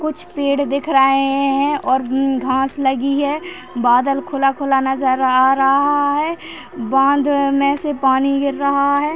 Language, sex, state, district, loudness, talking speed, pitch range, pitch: Hindi, female, Maharashtra, Sindhudurg, -16 LUFS, 150 wpm, 265-285 Hz, 275 Hz